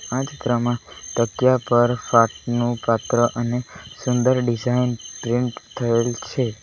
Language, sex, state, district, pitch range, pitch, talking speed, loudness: Gujarati, male, Gujarat, Valsad, 115-125 Hz, 120 Hz, 90 wpm, -21 LUFS